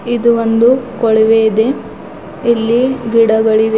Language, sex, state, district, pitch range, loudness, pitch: Kannada, female, Karnataka, Bidar, 220-240 Hz, -12 LUFS, 230 Hz